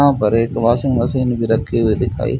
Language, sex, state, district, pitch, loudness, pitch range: Hindi, male, Haryana, Jhajjar, 120 Hz, -17 LUFS, 115-130 Hz